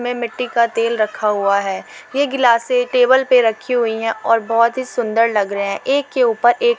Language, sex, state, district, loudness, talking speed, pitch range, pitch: Hindi, female, Uttar Pradesh, Etah, -17 LUFS, 230 wpm, 225-260 Hz, 235 Hz